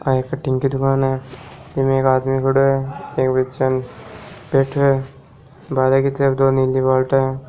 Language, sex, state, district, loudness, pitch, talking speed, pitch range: Marwari, male, Rajasthan, Nagaur, -18 LUFS, 135 Hz, 175 wpm, 130-135 Hz